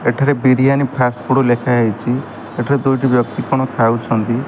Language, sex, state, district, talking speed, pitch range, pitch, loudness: Odia, male, Odisha, Khordha, 135 wpm, 120-135 Hz, 125 Hz, -16 LUFS